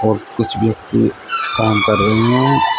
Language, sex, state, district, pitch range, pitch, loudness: Hindi, male, Uttar Pradesh, Shamli, 110-115 Hz, 110 Hz, -15 LUFS